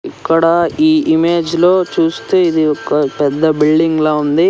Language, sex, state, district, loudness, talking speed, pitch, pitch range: Telugu, male, Andhra Pradesh, Sri Satya Sai, -13 LUFS, 145 wpm, 165 Hz, 155-175 Hz